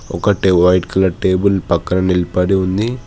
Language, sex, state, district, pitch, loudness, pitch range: Telugu, male, Telangana, Hyderabad, 95 Hz, -15 LUFS, 90-95 Hz